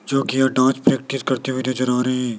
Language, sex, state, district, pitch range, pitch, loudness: Hindi, male, Rajasthan, Jaipur, 130-135 Hz, 130 Hz, -20 LUFS